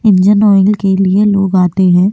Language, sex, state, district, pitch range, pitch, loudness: Hindi, female, Goa, North and South Goa, 190-205 Hz, 195 Hz, -10 LUFS